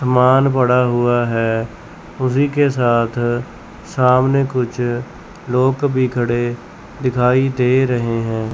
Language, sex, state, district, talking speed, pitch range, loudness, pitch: Hindi, male, Chandigarh, Chandigarh, 115 wpm, 120-130 Hz, -17 LUFS, 125 Hz